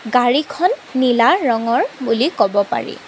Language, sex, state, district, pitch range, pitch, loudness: Assamese, female, Assam, Kamrup Metropolitan, 230-280 Hz, 250 Hz, -16 LUFS